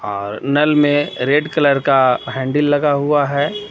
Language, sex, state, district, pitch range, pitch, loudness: Hindi, male, Jharkhand, Ranchi, 135-150 Hz, 145 Hz, -16 LUFS